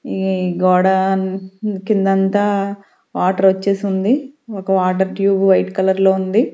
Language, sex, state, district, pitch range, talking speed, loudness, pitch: Telugu, female, Andhra Pradesh, Sri Satya Sai, 190-200 Hz, 120 wpm, -16 LUFS, 195 Hz